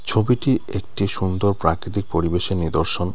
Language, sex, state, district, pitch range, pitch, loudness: Bengali, male, West Bengal, Cooch Behar, 85-100 Hz, 95 Hz, -21 LUFS